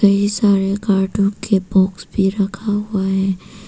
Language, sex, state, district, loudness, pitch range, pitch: Hindi, female, Arunachal Pradesh, Papum Pare, -17 LUFS, 195-205 Hz, 200 Hz